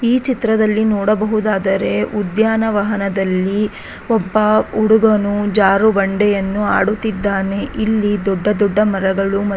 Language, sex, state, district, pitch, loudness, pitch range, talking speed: Kannada, female, Karnataka, Raichur, 205 Hz, -16 LUFS, 195-215 Hz, 90 wpm